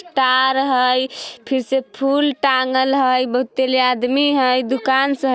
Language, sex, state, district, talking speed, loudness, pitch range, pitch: Bajjika, female, Bihar, Vaishali, 145 wpm, -17 LUFS, 255-270 Hz, 260 Hz